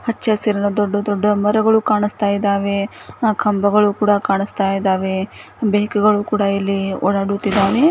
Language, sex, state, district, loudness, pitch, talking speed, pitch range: Kannada, female, Karnataka, Gulbarga, -17 LUFS, 205 Hz, 105 wpm, 200-210 Hz